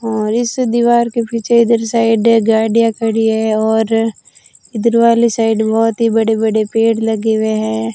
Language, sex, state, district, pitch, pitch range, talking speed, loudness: Hindi, female, Rajasthan, Bikaner, 225 Hz, 220-230 Hz, 165 wpm, -13 LUFS